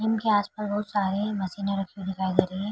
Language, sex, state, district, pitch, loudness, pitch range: Hindi, female, Chhattisgarh, Bilaspur, 200 Hz, -27 LUFS, 190-210 Hz